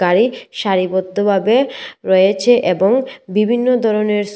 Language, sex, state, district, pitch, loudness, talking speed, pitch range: Bengali, female, Tripura, West Tripura, 205 Hz, -15 LUFS, 80 wpm, 190-240 Hz